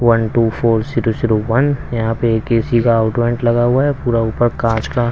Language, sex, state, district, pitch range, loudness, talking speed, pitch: Hindi, male, Haryana, Rohtak, 115-120 Hz, -16 LUFS, 220 wpm, 115 Hz